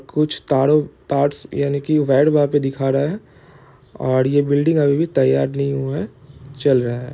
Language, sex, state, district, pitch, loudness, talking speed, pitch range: Hindi, male, Bihar, East Champaran, 140 Hz, -18 LUFS, 195 wpm, 135-145 Hz